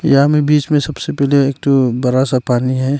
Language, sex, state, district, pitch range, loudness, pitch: Hindi, male, Arunachal Pradesh, Longding, 130-145 Hz, -14 LUFS, 140 Hz